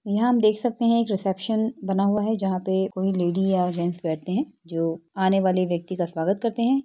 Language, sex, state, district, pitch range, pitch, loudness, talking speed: Hindi, female, Uttar Pradesh, Etah, 180-220 Hz, 195 Hz, -24 LUFS, 220 wpm